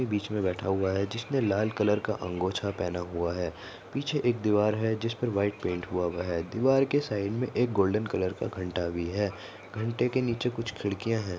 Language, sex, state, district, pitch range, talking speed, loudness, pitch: Hindi, male, Maharashtra, Nagpur, 90-115 Hz, 210 wpm, -29 LUFS, 105 Hz